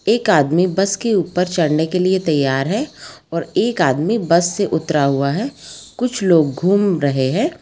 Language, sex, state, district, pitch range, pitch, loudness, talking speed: Hindi, female, Jharkhand, Sahebganj, 155-205 Hz, 180 Hz, -17 LUFS, 180 wpm